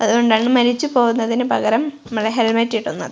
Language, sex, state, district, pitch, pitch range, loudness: Malayalam, female, Kerala, Kozhikode, 235 Hz, 225-245 Hz, -17 LUFS